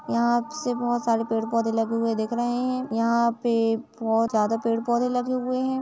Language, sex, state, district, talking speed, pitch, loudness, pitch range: Hindi, female, Uttar Pradesh, Etah, 205 wpm, 235 Hz, -24 LUFS, 225-245 Hz